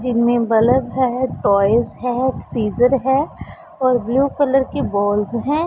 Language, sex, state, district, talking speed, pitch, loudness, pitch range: Hindi, female, Punjab, Pathankot, 150 wpm, 250 Hz, -18 LUFS, 235-265 Hz